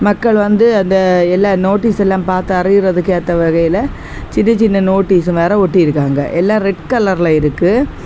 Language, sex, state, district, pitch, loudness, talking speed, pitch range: Tamil, female, Tamil Nadu, Kanyakumari, 190 Hz, -12 LUFS, 125 wpm, 175-205 Hz